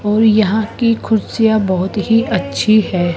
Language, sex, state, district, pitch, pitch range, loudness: Hindi, female, Rajasthan, Jaipur, 215 Hz, 205-220 Hz, -14 LUFS